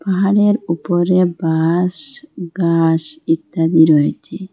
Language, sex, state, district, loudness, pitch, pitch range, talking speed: Bengali, female, Assam, Hailakandi, -15 LUFS, 175 Hz, 165-195 Hz, 80 wpm